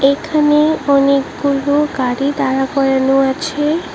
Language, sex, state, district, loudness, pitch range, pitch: Bengali, female, Tripura, West Tripura, -15 LUFS, 270-295 Hz, 280 Hz